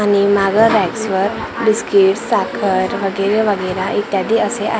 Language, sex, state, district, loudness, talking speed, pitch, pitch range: Marathi, female, Maharashtra, Gondia, -15 LUFS, 135 wpm, 200 Hz, 195-220 Hz